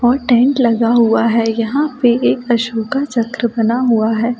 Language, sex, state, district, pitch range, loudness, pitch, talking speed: Hindi, female, Delhi, New Delhi, 230-245 Hz, -14 LUFS, 235 Hz, 190 wpm